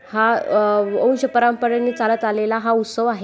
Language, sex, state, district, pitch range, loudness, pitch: Marathi, female, Maharashtra, Aurangabad, 220-240 Hz, -18 LUFS, 230 Hz